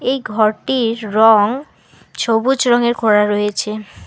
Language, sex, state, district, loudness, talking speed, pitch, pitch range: Bengali, female, West Bengal, Alipurduar, -15 LUFS, 105 wpm, 225 Hz, 210-245 Hz